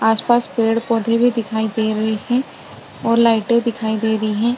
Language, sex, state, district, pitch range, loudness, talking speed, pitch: Hindi, female, Maharashtra, Chandrapur, 220-235 Hz, -17 LUFS, 195 wpm, 230 Hz